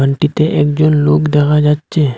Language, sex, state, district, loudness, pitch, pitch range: Bengali, male, Assam, Hailakandi, -12 LUFS, 150 Hz, 145-155 Hz